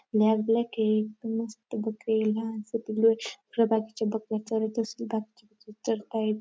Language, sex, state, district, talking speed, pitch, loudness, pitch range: Marathi, female, Maharashtra, Dhule, 105 wpm, 220 Hz, -29 LUFS, 215-225 Hz